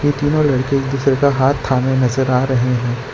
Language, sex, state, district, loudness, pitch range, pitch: Hindi, male, Gujarat, Valsad, -16 LUFS, 125-140 Hz, 130 Hz